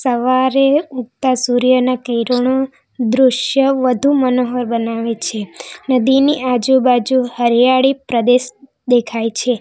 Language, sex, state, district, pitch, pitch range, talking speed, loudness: Gujarati, female, Gujarat, Valsad, 250 Hz, 240-260 Hz, 95 wpm, -15 LUFS